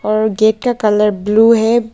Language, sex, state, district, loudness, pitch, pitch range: Hindi, female, Arunachal Pradesh, Papum Pare, -13 LUFS, 220 Hz, 210-225 Hz